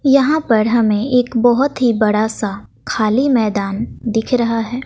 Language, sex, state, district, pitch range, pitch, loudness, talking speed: Hindi, female, Bihar, West Champaran, 215-250 Hz, 230 Hz, -16 LUFS, 160 wpm